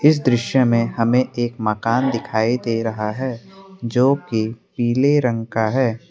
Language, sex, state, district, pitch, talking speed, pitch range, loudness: Hindi, male, Assam, Kamrup Metropolitan, 120 Hz, 155 wpm, 115-130 Hz, -19 LUFS